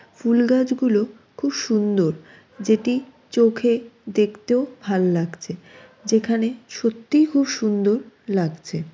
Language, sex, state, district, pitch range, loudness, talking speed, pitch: Bengali, female, West Bengal, Jalpaiguri, 210-245 Hz, -21 LUFS, 95 wpm, 225 Hz